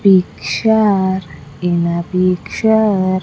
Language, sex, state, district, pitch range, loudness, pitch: English, female, Andhra Pradesh, Sri Satya Sai, 175-205 Hz, -15 LUFS, 185 Hz